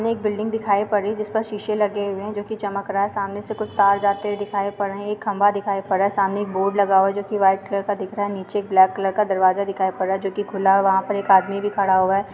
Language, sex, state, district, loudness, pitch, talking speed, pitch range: Hindi, female, Uttar Pradesh, Varanasi, -21 LUFS, 200 Hz, 320 wpm, 195-205 Hz